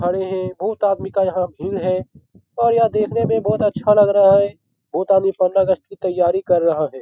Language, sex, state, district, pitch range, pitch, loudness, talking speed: Hindi, male, Bihar, Jahanabad, 185-210 Hz, 195 Hz, -18 LUFS, 220 wpm